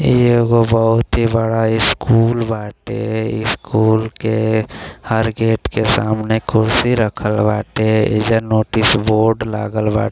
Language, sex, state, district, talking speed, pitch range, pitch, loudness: Bhojpuri, male, Uttar Pradesh, Gorakhpur, 120 wpm, 110-115 Hz, 110 Hz, -16 LUFS